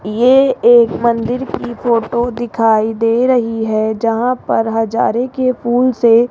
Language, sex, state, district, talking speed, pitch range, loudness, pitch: Hindi, female, Rajasthan, Jaipur, 150 wpm, 225-255 Hz, -14 LUFS, 240 Hz